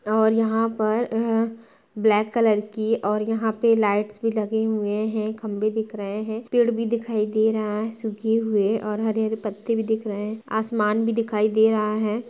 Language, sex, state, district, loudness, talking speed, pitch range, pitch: Hindi, female, Bihar, Gaya, -23 LUFS, 195 wpm, 215-225 Hz, 220 Hz